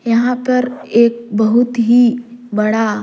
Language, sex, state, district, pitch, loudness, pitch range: Surgujia, female, Chhattisgarh, Sarguja, 235 Hz, -14 LUFS, 225-245 Hz